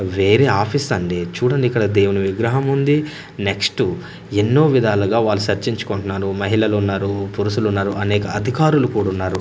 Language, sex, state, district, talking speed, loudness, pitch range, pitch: Telugu, male, Andhra Pradesh, Manyam, 115 wpm, -18 LUFS, 100-125 Hz, 105 Hz